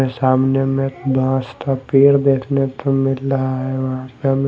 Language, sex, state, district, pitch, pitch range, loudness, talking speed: Hindi, male, Delhi, New Delhi, 135 Hz, 130-135 Hz, -17 LUFS, 135 wpm